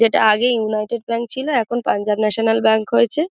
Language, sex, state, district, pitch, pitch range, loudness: Bengali, female, West Bengal, Dakshin Dinajpur, 225 Hz, 215-240 Hz, -18 LUFS